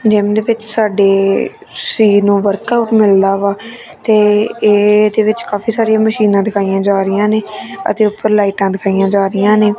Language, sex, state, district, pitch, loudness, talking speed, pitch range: Punjabi, female, Punjab, Kapurthala, 210 Hz, -12 LUFS, 160 wpm, 200-220 Hz